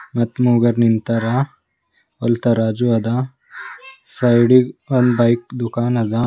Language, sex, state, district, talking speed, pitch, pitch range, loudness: Kannada, male, Karnataka, Bidar, 115 wpm, 120 Hz, 115-125 Hz, -17 LUFS